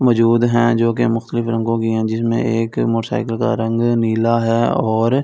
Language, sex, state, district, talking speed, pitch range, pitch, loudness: Hindi, male, Delhi, New Delhi, 170 wpm, 115-120 Hz, 115 Hz, -17 LUFS